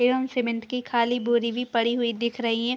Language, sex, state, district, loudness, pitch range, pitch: Hindi, female, Chhattisgarh, Bilaspur, -25 LUFS, 235-245 Hz, 235 Hz